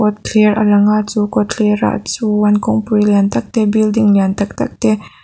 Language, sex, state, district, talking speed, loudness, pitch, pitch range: Mizo, female, Mizoram, Aizawl, 170 wpm, -14 LUFS, 210 Hz, 205-215 Hz